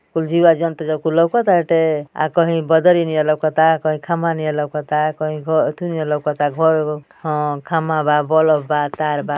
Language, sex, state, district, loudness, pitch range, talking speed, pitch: Bhojpuri, male, Uttar Pradesh, Ghazipur, -17 LUFS, 150-165 Hz, 160 wpm, 155 Hz